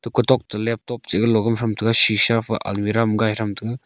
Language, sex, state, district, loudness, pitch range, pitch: Wancho, male, Arunachal Pradesh, Longding, -20 LUFS, 110-115 Hz, 115 Hz